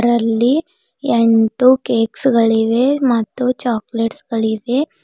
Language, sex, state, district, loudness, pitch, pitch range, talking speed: Kannada, female, Karnataka, Bidar, -16 LUFS, 235 Hz, 225-255 Hz, 85 wpm